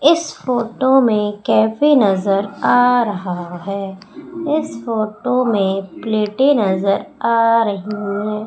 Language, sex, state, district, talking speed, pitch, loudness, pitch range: Hindi, female, Madhya Pradesh, Umaria, 115 wpm, 220 Hz, -17 LUFS, 200-250 Hz